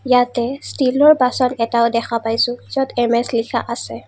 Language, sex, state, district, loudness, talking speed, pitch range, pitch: Assamese, female, Assam, Kamrup Metropolitan, -17 LUFS, 145 wpm, 230-255 Hz, 240 Hz